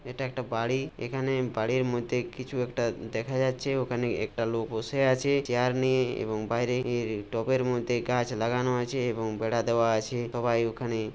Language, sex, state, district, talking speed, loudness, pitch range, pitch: Bengali, male, West Bengal, Purulia, 165 wpm, -29 LUFS, 115-130 Hz, 120 Hz